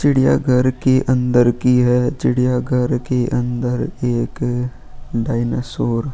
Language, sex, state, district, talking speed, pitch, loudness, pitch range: Hindi, male, Goa, North and South Goa, 105 wpm, 125 Hz, -18 LUFS, 120-130 Hz